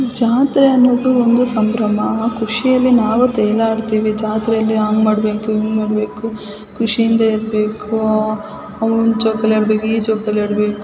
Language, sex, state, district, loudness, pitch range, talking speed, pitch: Kannada, female, Karnataka, Chamarajanagar, -15 LUFS, 215-225 Hz, 115 wpm, 220 Hz